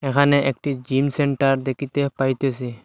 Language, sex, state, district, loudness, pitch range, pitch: Bengali, male, Assam, Hailakandi, -21 LUFS, 130-140 Hz, 135 Hz